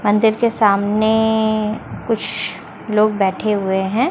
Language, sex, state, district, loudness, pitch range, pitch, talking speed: Hindi, female, Chhattisgarh, Raipur, -17 LUFS, 205-220 Hz, 215 Hz, 115 wpm